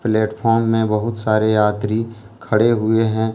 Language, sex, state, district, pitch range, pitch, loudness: Hindi, male, Jharkhand, Deoghar, 110-115 Hz, 110 Hz, -18 LUFS